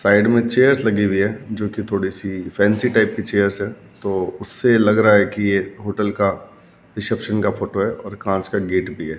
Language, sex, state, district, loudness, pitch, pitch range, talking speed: Hindi, male, Rajasthan, Bikaner, -19 LUFS, 105 Hz, 100-110 Hz, 215 wpm